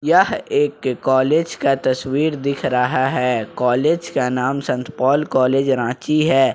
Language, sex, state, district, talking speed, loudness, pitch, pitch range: Hindi, male, Jharkhand, Ranchi, 155 wpm, -18 LUFS, 135 Hz, 130-150 Hz